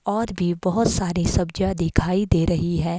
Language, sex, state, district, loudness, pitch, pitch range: Hindi, female, Himachal Pradesh, Shimla, -22 LUFS, 180 Hz, 170-190 Hz